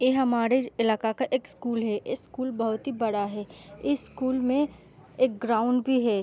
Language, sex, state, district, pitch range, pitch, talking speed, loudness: Hindi, female, Bihar, Gopalganj, 225-260 Hz, 245 Hz, 190 wpm, -27 LUFS